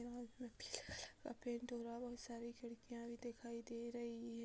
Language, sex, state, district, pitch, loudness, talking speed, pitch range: Hindi, female, Uttar Pradesh, Budaun, 235 Hz, -50 LUFS, 230 wpm, 235-240 Hz